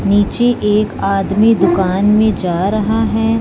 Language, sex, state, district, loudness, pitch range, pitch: Hindi, female, Punjab, Fazilka, -14 LUFS, 195-220 Hz, 210 Hz